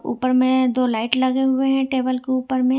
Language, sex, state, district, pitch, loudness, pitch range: Hindi, female, Jharkhand, Ranchi, 255 Hz, -19 LUFS, 255-260 Hz